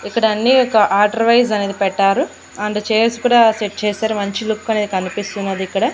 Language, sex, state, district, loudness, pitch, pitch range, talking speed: Telugu, female, Andhra Pradesh, Annamaya, -16 LUFS, 210 Hz, 200-225 Hz, 170 wpm